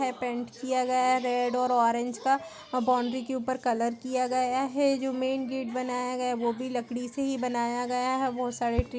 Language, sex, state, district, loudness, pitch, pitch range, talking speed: Hindi, female, Chhattisgarh, Raigarh, -29 LUFS, 250 Hz, 245-260 Hz, 225 wpm